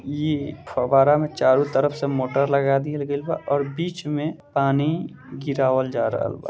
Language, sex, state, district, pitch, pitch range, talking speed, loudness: Bhojpuri, male, Bihar, Gopalganj, 140 Hz, 135-150 Hz, 175 wpm, -22 LUFS